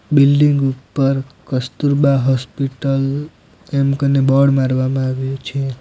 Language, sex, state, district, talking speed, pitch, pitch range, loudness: Gujarati, male, Gujarat, Valsad, 105 wpm, 135 Hz, 130-140 Hz, -17 LUFS